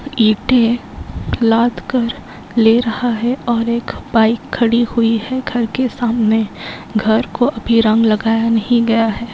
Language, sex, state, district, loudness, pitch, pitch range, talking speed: Hindi, female, Bihar, Muzaffarpur, -15 LUFS, 230 Hz, 225-240 Hz, 150 wpm